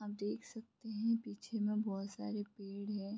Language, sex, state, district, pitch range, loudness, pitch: Hindi, female, Bihar, Vaishali, 200-220 Hz, -41 LUFS, 210 Hz